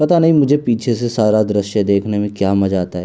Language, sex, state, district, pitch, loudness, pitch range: Hindi, male, Uttar Pradesh, Hamirpur, 105 Hz, -15 LUFS, 100-120 Hz